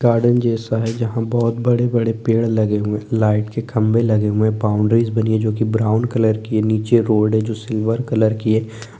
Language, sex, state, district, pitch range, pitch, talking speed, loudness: Hindi, male, Chhattisgarh, Korba, 110-115 Hz, 110 Hz, 205 wpm, -18 LUFS